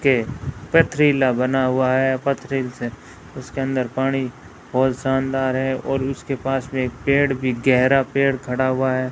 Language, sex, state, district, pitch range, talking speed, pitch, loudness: Hindi, female, Rajasthan, Bikaner, 130-135 Hz, 165 wpm, 130 Hz, -20 LUFS